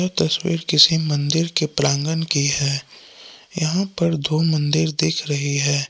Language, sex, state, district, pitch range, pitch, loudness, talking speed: Hindi, male, Jharkhand, Palamu, 145-165 Hz, 155 Hz, -19 LUFS, 150 wpm